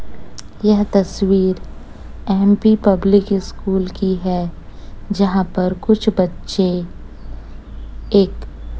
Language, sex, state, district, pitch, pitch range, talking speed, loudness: Hindi, female, Chhattisgarh, Raipur, 190 Hz, 180-200 Hz, 80 wpm, -17 LUFS